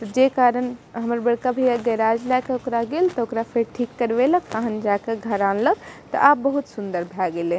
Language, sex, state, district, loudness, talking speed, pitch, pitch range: Maithili, female, Bihar, Madhepura, -22 LUFS, 215 wpm, 235 Hz, 220-255 Hz